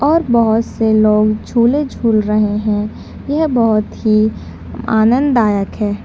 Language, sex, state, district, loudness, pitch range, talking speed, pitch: Hindi, female, Uttar Pradesh, Deoria, -14 LUFS, 215-240 Hz, 130 wpm, 220 Hz